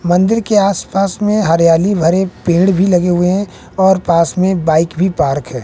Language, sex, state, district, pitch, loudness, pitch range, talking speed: Hindi, male, Bihar, West Champaran, 180 Hz, -13 LUFS, 170-195 Hz, 200 wpm